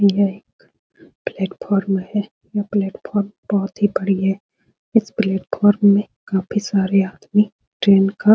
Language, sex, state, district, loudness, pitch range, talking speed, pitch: Hindi, female, Bihar, Supaul, -19 LUFS, 195-205 Hz, 145 wpm, 200 Hz